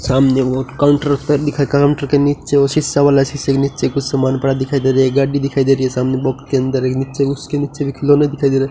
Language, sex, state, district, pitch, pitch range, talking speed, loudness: Hindi, male, Rajasthan, Bikaner, 140 Hz, 135-145 Hz, 250 wpm, -15 LUFS